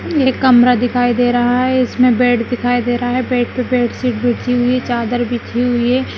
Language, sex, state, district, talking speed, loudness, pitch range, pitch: Hindi, female, Rajasthan, Nagaur, 215 wpm, -15 LUFS, 240-250 Hz, 245 Hz